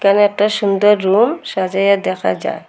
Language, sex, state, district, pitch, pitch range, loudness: Bengali, female, Assam, Hailakandi, 200 Hz, 185-205 Hz, -15 LUFS